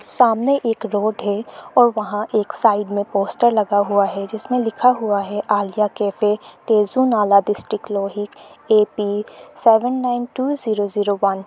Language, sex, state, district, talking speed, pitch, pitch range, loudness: Hindi, female, Arunachal Pradesh, Lower Dibang Valley, 160 wpm, 210 Hz, 205-230 Hz, -19 LUFS